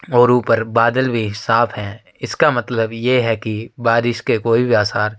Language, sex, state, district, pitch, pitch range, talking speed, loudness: Hindi, male, Uttar Pradesh, Jyotiba Phule Nagar, 115 Hz, 110-120 Hz, 195 wpm, -16 LUFS